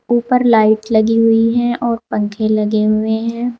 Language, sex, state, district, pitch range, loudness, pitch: Hindi, female, Uttar Pradesh, Saharanpur, 215-235 Hz, -14 LUFS, 225 Hz